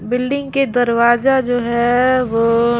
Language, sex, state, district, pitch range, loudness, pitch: Surgujia, female, Chhattisgarh, Sarguja, 235-255 Hz, -15 LUFS, 245 Hz